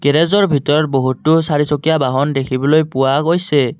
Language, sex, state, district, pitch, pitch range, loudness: Assamese, male, Assam, Kamrup Metropolitan, 150 Hz, 135-160 Hz, -15 LUFS